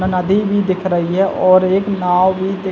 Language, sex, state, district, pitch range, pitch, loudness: Hindi, male, Chhattisgarh, Bilaspur, 185-195 Hz, 185 Hz, -15 LUFS